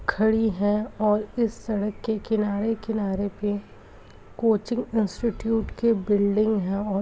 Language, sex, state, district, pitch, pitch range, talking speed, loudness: Hindi, female, Uttar Pradesh, Muzaffarnagar, 210 Hz, 200-225 Hz, 130 wpm, -25 LUFS